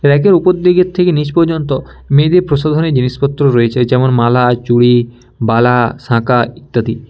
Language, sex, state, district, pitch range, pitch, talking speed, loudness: Bengali, male, West Bengal, Alipurduar, 120-155 Hz, 130 Hz, 145 wpm, -12 LUFS